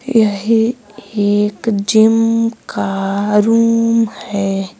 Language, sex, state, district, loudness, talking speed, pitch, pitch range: Hindi, female, Uttar Pradesh, Saharanpur, -15 LUFS, 75 wpm, 220 Hz, 205-230 Hz